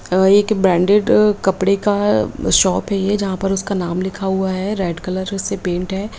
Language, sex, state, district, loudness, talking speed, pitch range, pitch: Hindi, female, Bihar, Jahanabad, -17 LUFS, 185 wpm, 185-200 Hz, 195 Hz